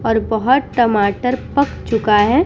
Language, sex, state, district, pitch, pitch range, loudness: Hindi, female, Bihar, Vaishali, 225 Hz, 215-260 Hz, -16 LUFS